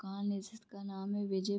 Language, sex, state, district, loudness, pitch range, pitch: Hindi, female, Bihar, Vaishali, -39 LUFS, 195-205 Hz, 200 Hz